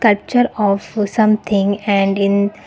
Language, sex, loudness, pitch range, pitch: English, female, -16 LUFS, 200-215 Hz, 205 Hz